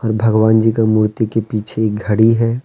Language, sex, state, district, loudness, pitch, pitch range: Hindi, male, Jharkhand, Deoghar, -15 LUFS, 110 Hz, 110-115 Hz